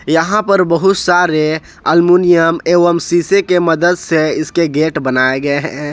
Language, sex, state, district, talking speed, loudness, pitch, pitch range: Hindi, male, Jharkhand, Ranchi, 150 wpm, -12 LUFS, 170 Hz, 155-175 Hz